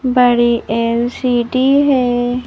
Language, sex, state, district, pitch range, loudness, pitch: Hindi, female, Madhya Pradesh, Bhopal, 240-255 Hz, -14 LUFS, 245 Hz